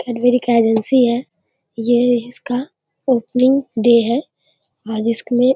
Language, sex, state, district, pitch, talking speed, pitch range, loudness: Hindi, female, Bihar, Darbhanga, 245 Hz, 150 wpm, 235-255 Hz, -17 LUFS